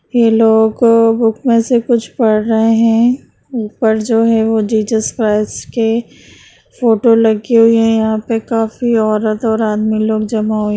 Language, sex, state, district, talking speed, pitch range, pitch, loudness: Hindi, female, Bihar, Madhepura, 165 wpm, 220-230 Hz, 225 Hz, -13 LUFS